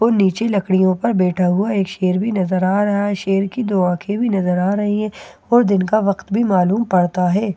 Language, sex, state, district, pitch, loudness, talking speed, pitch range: Hindi, female, Bihar, Katihar, 195 Hz, -17 LUFS, 240 wpm, 185-210 Hz